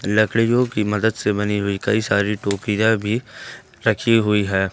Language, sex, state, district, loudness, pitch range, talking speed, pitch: Hindi, male, Jharkhand, Ranchi, -19 LUFS, 105-110 Hz, 165 wpm, 105 Hz